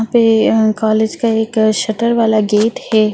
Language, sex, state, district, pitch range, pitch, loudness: Hindi, female, Bihar, Jamui, 215-225 Hz, 220 Hz, -14 LUFS